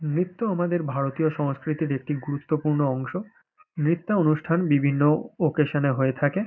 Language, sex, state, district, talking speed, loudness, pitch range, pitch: Bengali, male, West Bengal, Paschim Medinipur, 120 wpm, -24 LUFS, 145-175 Hz, 155 Hz